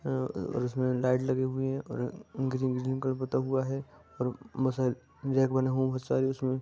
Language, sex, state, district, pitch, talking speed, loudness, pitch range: Hindi, female, Bihar, Darbhanga, 130 Hz, 200 wpm, -31 LUFS, 125-130 Hz